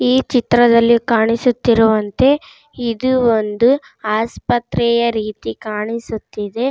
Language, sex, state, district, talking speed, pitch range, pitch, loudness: Kannada, female, Karnataka, Raichur, 70 wpm, 220-250 Hz, 235 Hz, -16 LUFS